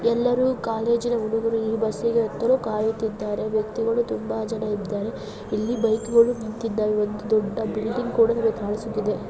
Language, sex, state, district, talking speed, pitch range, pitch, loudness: Kannada, female, Karnataka, Bijapur, 95 wpm, 215-230 Hz, 225 Hz, -24 LUFS